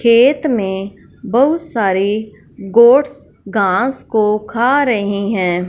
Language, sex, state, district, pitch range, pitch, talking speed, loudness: Hindi, female, Punjab, Fazilka, 200-260 Hz, 220 Hz, 105 wpm, -15 LUFS